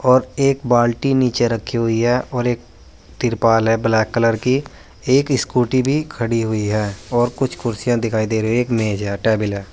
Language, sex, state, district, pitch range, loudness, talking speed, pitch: Hindi, male, Uttar Pradesh, Saharanpur, 110-125 Hz, -18 LUFS, 195 wpm, 115 Hz